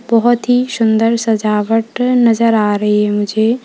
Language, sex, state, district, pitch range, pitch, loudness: Hindi, female, Uttar Pradesh, Lalitpur, 215-235 Hz, 225 Hz, -13 LUFS